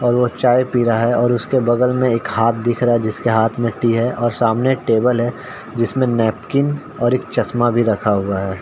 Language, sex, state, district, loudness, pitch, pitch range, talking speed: Hindi, male, Uttar Pradesh, Ghazipur, -17 LUFS, 120 Hz, 115-125 Hz, 245 wpm